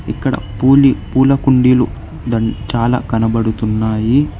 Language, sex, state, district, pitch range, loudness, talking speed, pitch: Telugu, male, Telangana, Hyderabad, 110-130 Hz, -14 LUFS, 80 wpm, 115 Hz